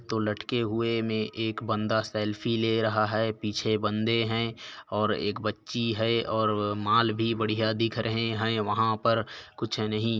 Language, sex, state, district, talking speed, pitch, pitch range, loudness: Chhattisgarhi, male, Chhattisgarh, Korba, 165 wpm, 110 Hz, 110-115 Hz, -28 LUFS